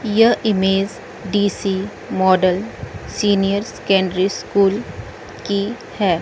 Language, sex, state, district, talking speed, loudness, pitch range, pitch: Hindi, female, Chandigarh, Chandigarh, 85 wpm, -18 LUFS, 190-205 Hz, 200 Hz